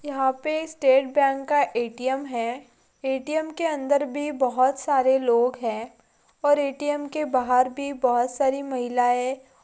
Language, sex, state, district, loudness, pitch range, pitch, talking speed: Hindi, female, Bihar, Gaya, -24 LUFS, 250-290 Hz, 265 Hz, 145 wpm